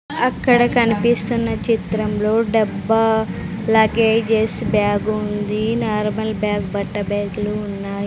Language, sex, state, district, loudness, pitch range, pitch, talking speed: Telugu, female, Andhra Pradesh, Sri Satya Sai, -19 LUFS, 205-225 Hz, 215 Hz, 90 wpm